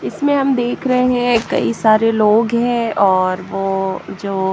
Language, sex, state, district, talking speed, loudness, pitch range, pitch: Hindi, female, Haryana, Jhajjar, 145 wpm, -16 LUFS, 195-245 Hz, 225 Hz